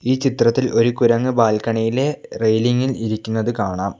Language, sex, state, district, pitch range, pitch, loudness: Malayalam, male, Kerala, Kollam, 110-125 Hz, 115 Hz, -18 LUFS